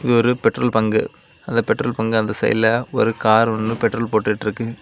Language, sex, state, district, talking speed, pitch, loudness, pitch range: Tamil, male, Tamil Nadu, Kanyakumari, 185 wpm, 110 Hz, -19 LUFS, 110-115 Hz